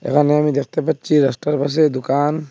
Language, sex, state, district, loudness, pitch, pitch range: Bengali, male, Assam, Hailakandi, -17 LUFS, 145 Hz, 140-150 Hz